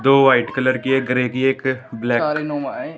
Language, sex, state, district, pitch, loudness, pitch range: Hindi, male, Haryana, Jhajjar, 130 Hz, -19 LUFS, 125-135 Hz